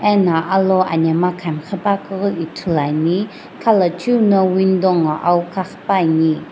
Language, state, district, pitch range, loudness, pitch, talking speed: Sumi, Nagaland, Dimapur, 165-195 Hz, -17 LUFS, 185 Hz, 130 wpm